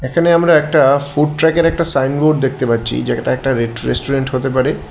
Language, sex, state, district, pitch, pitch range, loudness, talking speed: Bengali, male, Tripura, West Tripura, 135 Hz, 130-155 Hz, -15 LUFS, 185 wpm